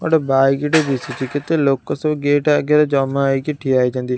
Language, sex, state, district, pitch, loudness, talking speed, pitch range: Odia, female, Odisha, Khordha, 140 Hz, -17 LUFS, 185 wpm, 135-150 Hz